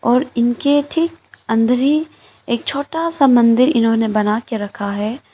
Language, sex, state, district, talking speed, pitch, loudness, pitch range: Hindi, female, Arunachal Pradesh, Lower Dibang Valley, 145 wpm, 240 Hz, -16 LUFS, 225-285 Hz